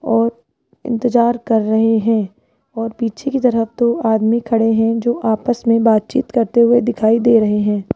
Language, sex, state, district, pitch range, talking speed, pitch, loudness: Hindi, female, Rajasthan, Jaipur, 225-240 Hz, 175 wpm, 230 Hz, -16 LUFS